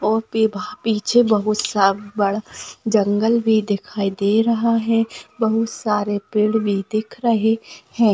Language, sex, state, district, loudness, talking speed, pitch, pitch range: Hindi, female, Maharashtra, Aurangabad, -19 LUFS, 125 wpm, 215 Hz, 205-225 Hz